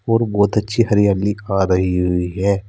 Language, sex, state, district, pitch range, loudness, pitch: Hindi, male, Uttar Pradesh, Saharanpur, 95-105 Hz, -17 LUFS, 100 Hz